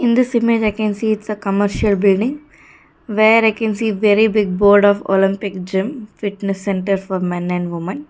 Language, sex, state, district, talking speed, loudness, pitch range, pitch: English, female, Karnataka, Bangalore, 190 wpm, -17 LUFS, 195-220 Hz, 205 Hz